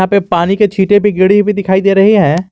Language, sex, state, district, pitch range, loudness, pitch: Hindi, male, Jharkhand, Garhwa, 185-205 Hz, -10 LUFS, 195 Hz